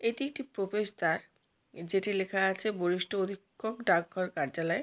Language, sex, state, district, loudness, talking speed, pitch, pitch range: Bengali, female, West Bengal, Jalpaiguri, -32 LUFS, 150 wpm, 195 Hz, 185-215 Hz